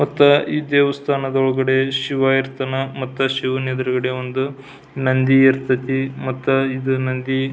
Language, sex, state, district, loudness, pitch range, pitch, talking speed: Kannada, male, Karnataka, Belgaum, -19 LUFS, 130-135 Hz, 135 Hz, 120 wpm